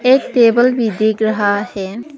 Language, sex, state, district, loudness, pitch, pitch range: Hindi, female, Arunachal Pradesh, Papum Pare, -14 LUFS, 225 Hz, 210-245 Hz